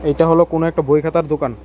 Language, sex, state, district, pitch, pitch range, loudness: Bengali, male, Tripura, West Tripura, 165 Hz, 150-165 Hz, -16 LUFS